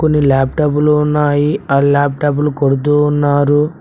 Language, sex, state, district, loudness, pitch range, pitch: Telugu, male, Telangana, Mahabubabad, -13 LUFS, 145-150 Hz, 145 Hz